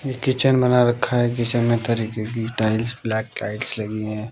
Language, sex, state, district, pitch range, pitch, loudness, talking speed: Hindi, male, Bihar, West Champaran, 110-125 Hz, 115 Hz, -21 LUFS, 195 wpm